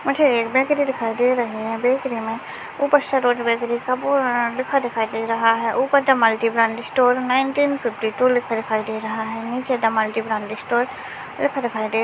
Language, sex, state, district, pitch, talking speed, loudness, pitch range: Hindi, male, Maharashtra, Nagpur, 240 Hz, 195 wpm, -20 LUFS, 225-260 Hz